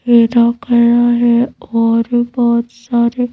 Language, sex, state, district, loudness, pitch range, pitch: Hindi, female, Madhya Pradesh, Bhopal, -13 LUFS, 235-240 Hz, 235 Hz